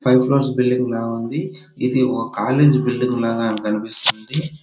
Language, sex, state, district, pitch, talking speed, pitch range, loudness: Telugu, male, Andhra Pradesh, Chittoor, 125 Hz, 130 wpm, 115-130 Hz, -19 LUFS